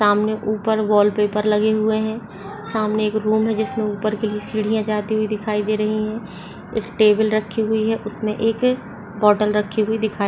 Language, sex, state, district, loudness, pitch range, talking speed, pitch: Hindi, female, Uttarakhand, Uttarkashi, -20 LUFS, 210-220 Hz, 195 wpm, 215 Hz